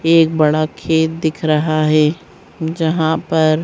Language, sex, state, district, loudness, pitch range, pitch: Hindi, female, Madhya Pradesh, Bhopal, -16 LUFS, 155-160 Hz, 160 Hz